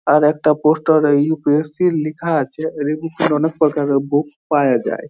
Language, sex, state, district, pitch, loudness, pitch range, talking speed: Bengali, male, West Bengal, Jhargram, 150 Hz, -17 LUFS, 145-160 Hz, 190 wpm